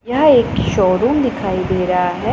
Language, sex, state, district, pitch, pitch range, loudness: Hindi, male, Punjab, Pathankot, 205 Hz, 185-250 Hz, -15 LUFS